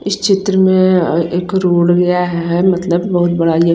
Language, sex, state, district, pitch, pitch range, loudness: Hindi, female, Chandigarh, Chandigarh, 180 Hz, 170-185 Hz, -13 LUFS